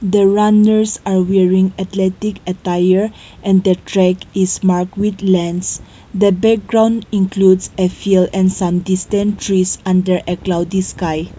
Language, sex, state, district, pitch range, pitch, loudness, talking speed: English, female, Nagaland, Kohima, 185-200 Hz, 190 Hz, -15 LUFS, 135 wpm